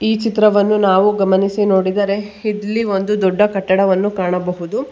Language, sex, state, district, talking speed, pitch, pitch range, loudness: Kannada, female, Karnataka, Bangalore, 120 wpm, 200 Hz, 190-210 Hz, -16 LUFS